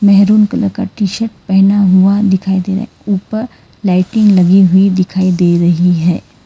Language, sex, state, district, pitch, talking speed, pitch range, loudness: Hindi, female, Karnataka, Bangalore, 195 Hz, 175 wpm, 185-205 Hz, -11 LUFS